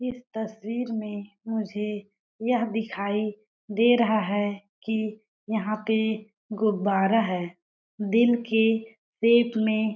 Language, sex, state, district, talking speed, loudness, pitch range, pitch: Hindi, female, Chhattisgarh, Balrampur, 115 wpm, -26 LUFS, 210-225 Hz, 220 Hz